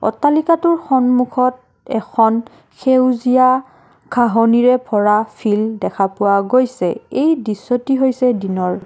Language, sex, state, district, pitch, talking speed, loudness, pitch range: Assamese, female, Assam, Kamrup Metropolitan, 245 Hz, 95 wpm, -16 LUFS, 215-255 Hz